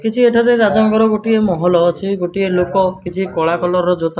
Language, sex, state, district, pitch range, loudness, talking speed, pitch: Odia, male, Odisha, Malkangiri, 175-220 Hz, -15 LUFS, 200 wpm, 190 Hz